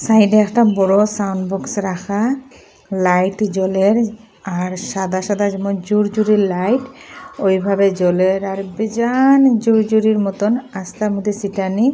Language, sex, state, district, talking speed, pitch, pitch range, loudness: Bengali, female, Assam, Hailakandi, 125 wpm, 205 Hz, 190-220 Hz, -17 LUFS